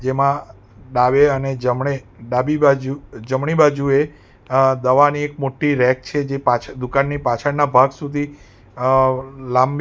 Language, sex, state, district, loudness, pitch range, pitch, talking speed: Gujarati, male, Gujarat, Valsad, -18 LUFS, 125-145 Hz, 135 Hz, 140 wpm